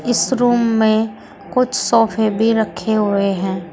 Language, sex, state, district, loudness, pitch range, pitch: Hindi, female, Uttar Pradesh, Saharanpur, -16 LUFS, 200-230 Hz, 220 Hz